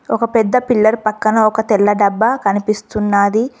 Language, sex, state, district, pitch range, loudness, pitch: Telugu, female, Telangana, Mahabubabad, 205-225 Hz, -14 LUFS, 215 Hz